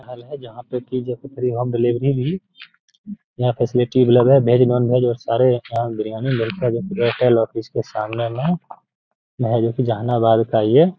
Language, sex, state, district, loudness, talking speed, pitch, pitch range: Hindi, male, Bihar, Gaya, -19 LUFS, 140 wpm, 125 Hz, 115-130 Hz